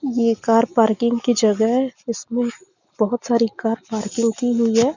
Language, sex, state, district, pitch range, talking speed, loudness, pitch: Hindi, female, Chhattisgarh, Bastar, 225-245 Hz, 170 wpm, -20 LUFS, 235 Hz